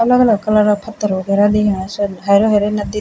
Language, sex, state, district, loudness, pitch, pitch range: Garhwali, female, Uttarakhand, Tehri Garhwal, -15 LUFS, 210 Hz, 200-210 Hz